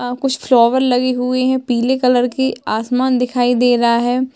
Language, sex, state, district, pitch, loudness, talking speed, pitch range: Hindi, female, Chhattisgarh, Sukma, 250 Hz, -15 LUFS, 190 wpm, 245-260 Hz